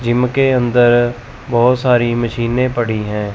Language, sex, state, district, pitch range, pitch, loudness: Hindi, male, Chandigarh, Chandigarh, 120-125 Hz, 120 Hz, -15 LUFS